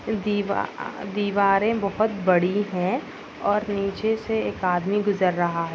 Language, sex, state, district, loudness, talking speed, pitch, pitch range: Hindi, female, Maharashtra, Nagpur, -24 LUFS, 135 wpm, 200 Hz, 185-210 Hz